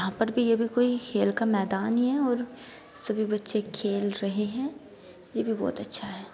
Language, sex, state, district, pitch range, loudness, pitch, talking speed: Bhojpuri, female, Uttar Pradesh, Deoria, 205-245 Hz, -28 LUFS, 220 Hz, 210 wpm